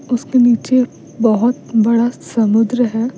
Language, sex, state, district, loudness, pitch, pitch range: Hindi, female, Bihar, Patna, -15 LUFS, 235 Hz, 225-245 Hz